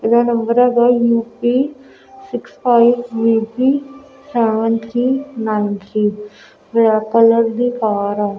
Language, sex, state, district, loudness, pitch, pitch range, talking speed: Punjabi, female, Punjab, Kapurthala, -16 LUFS, 230 Hz, 220-245 Hz, 115 wpm